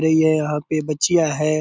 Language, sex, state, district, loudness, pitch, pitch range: Hindi, male, Bihar, Purnia, -19 LUFS, 155 Hz, 150-160 Hz